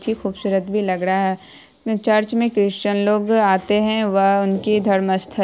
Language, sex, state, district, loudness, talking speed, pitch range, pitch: Hindi, female, Bihar, Saharsa, -19 LUFS, 175 wpm, 195-215 Hz, 205 Hz